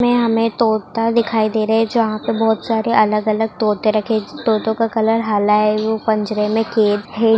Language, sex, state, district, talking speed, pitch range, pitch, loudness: Hindi, female, Bihar, Saharsa, 195 wpm, 215-225 Hz, 220 Hz, -17 LUFS